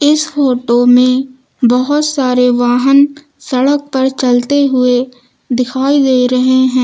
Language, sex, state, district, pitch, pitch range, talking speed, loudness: Hindi, female, Uttar Pradesh, Lucknow, 260 Hz, 250-280 Hz, 125 wpm, -12 LUFS